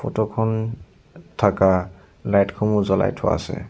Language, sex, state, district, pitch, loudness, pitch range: Assamese, male, Assam, Sonitpur, 100 Hz, -21 LUFS, 95-110 Hz